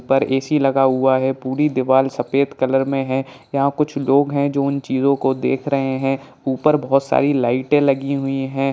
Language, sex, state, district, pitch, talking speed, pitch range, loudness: Hindi, male, Bihar, Jahanabad, 135 Hz, 200 wpm, 130-140 Hz, -18 LUFS